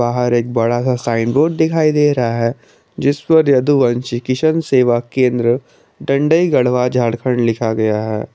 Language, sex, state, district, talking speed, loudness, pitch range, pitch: Hindi, male, Jharkhand, Garhwa, 160 wpm, -15 LUFS, 120-140 Hz, 125 Hz